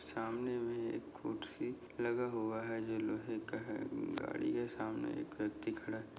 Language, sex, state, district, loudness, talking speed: Hindi, male, Goa, North and South Goa, -41 LUFS, 175 wpm